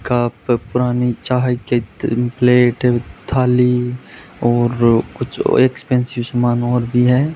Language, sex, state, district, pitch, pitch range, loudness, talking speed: Hindi, male, Rajasthan, Bikaner, 125 Hz, 120-125 Hz, -16 LUFS, 130 wpm